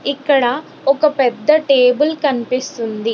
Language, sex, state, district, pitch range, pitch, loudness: Telugu, female, Telangana, Hyderabad, 245-295 Hz, 270 Hz, -15 LUFS